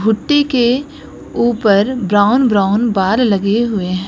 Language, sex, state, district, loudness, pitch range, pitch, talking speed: Hindi, female, Uttar Pradesh, Lucknow, -14 LUFS, 200-245 Hz, 220 Hz, 130 wpm